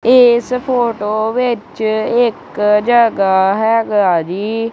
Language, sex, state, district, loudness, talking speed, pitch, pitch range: Punjabi, male, Punjab, Kapurthala, -14 LUFS, 90 wpm, 220 Hz, 210-240 Hz